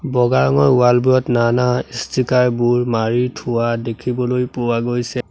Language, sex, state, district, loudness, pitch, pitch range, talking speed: Assamese, male, Assam, Sonitpur, -17 LUFS, 120 Hz, 120-125 Hz, 135 wpm